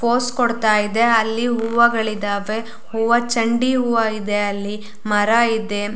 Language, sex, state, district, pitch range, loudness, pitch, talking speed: Kannada, female, Karnataka, Shimoga, 210-235 Hz, -18 LUFS, 225 Hz, 120 wpm